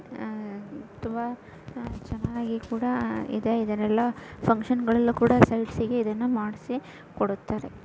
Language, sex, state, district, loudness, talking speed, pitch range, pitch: Kannada, female, Karnataka, Raichur, -27 LUFS, 120 wpm, 210-235 Hz, 230 Hz